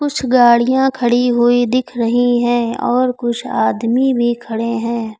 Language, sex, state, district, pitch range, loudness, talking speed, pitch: Hindi, female, Uttar Pradesh, Lucknow, 235-250 Hz, -15 LUFS, 150 wpm, 240 Hz